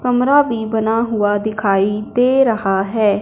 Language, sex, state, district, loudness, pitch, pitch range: Hindi, male, Punjab, Fazilka, -16 LUFS, 220 Hz, 205-245 Hz